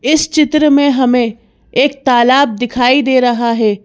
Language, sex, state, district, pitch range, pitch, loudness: Hindi, female, Madhya Pradesh, Bhopal, 240-285 Hz, 255 Hz, -12 LUFS